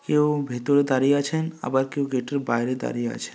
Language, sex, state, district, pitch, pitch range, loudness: Bengali, male, West Bengal, North 24 Parganas, 140 Hz, 130-145 Hz, -24 LUFS